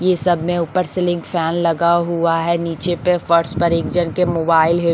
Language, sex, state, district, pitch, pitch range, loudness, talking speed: Hindi, female, Bihar, Patna, 170 Hz, 165-175 Hz, -17 LUFS, 230 wpm